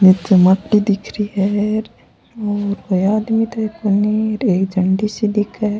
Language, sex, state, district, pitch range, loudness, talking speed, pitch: Rajasthani, female, Rajasthan, Churu, 195-215 Hz, -17 LUFS, 155 wpm, 210 Hz